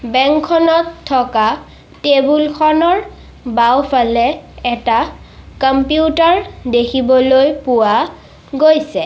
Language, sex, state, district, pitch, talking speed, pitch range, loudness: Assamese, female, Assam, Sonitpur, 275 Hz, 75 wpm, 245-310 Hz, -13 LUFS